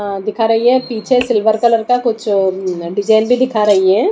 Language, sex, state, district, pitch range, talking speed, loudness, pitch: Hindi, female, Odisha, Nuapada, 200-235 Hz, 220 wpm, -14 LUFS, 220 Hz